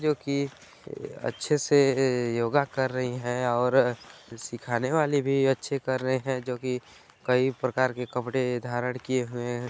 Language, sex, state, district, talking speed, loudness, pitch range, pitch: Hindi, male, Chhattisgarh, Bilaspur, 155 wpm, -27 LUFS, 125-135 Hz, 130 Hz